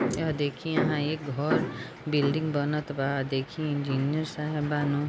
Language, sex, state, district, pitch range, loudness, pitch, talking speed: Bhojpuri, female, Bihar, Gopalganj, 140-150 Hz, -29 LUFS, 145 Hz, 155 wpm